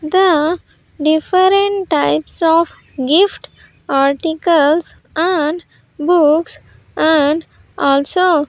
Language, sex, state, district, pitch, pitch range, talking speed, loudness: English, female, Andhra Pradesh, Sri Satya Sai, 320 Hz, 295-355 Hz, 80 wpm, -15 LUFS